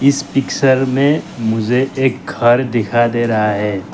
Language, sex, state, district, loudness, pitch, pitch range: Hindi, male, Arunachal Pradesh, Lower Dibang Valley, -15 LUFS, 125 Hz, 115-135 Hz